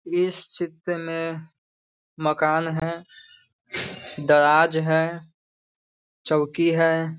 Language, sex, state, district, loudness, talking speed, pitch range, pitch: Hindi, male, Bihar, Sitamarhi, -22 LUFS, 75 wpm, 150-170 Hz, 160 Hz